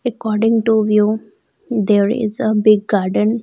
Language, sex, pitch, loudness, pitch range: English, female, 215 Hz, -16 LUFS, 210-225 Hz